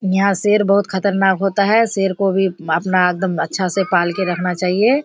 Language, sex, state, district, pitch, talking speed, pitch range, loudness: Hindi, female, Bihar, Kishanganj, 190 Hz, 200 wpm, 180-200 Hz, -17 LUFS